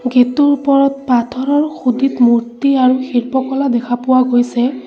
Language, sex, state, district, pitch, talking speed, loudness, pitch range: Assamese, female, Assam, Sonitpur, 255 Hz, 135 wpm, -14 LUFS, 245-275 Hz